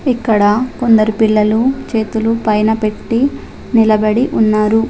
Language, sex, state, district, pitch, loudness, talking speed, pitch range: Telugu, female, Telangana, Adilabad, 220 Hz, -13 LUFS, 100 wpm, 215-235 Hz